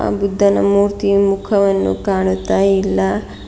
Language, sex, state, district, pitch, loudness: Kannada, female, Karnataka, Bidar, 195 Hz, -15 LUFS